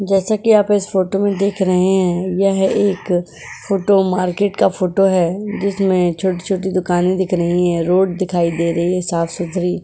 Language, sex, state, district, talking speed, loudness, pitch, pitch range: Hindi, female, Uttar Pradesh, Budaun, 175 wpm, -16 LUFS, 185 Hz, 180-195 Hz